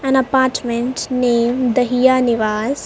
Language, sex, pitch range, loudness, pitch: English, female, 240-260 Hz, -16 LUFS, 250 Hz